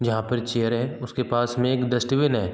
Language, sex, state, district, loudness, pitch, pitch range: Hindi, male, Bihar, East Champaran, -24 LUFS, 120 Hz, 120-125 Hz